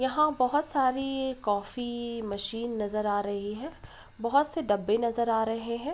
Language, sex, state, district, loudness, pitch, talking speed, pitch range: Hindi, female, Uttar Pradesh, Ghazipur, -29 LUFS, 235 Hz, 160 wpm, 215-270 Hz